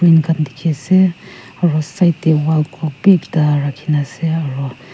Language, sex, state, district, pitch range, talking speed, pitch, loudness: Nagamese, female, Nagaland, Kohima, 145-170 Hz, 170 wpm, 155 Hz, -16 LUFS